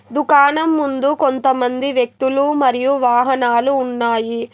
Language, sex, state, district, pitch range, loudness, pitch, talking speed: Telugu, female, Telangana, Hyderabad, 245-280 Hz, -16 LUFS, 265 Hz, 95 wpm